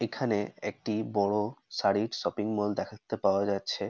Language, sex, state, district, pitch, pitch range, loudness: Bengali, male, West Bengal, North 24 Parganas, 105 Hz, 100-110 Hz, -31 LUFS